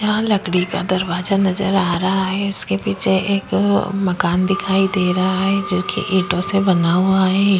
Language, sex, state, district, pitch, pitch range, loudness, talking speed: Hindi, female, Uttar Pradesh, Jyotiba Phule Nagar, 195 Hz, 185-195 Hz, -18 LUFS, 180 wpm